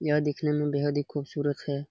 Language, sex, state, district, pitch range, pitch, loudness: Hindi, male, Bihar, Jamui, 145-150 Hz, 145 Hz, -29 LUFS